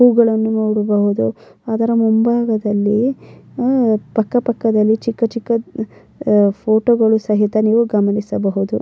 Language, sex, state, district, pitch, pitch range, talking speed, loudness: Kannada, female, Karnataka, Mysore, 220 Hz, 210-230 Hz, 80 wpm, -16 LUFS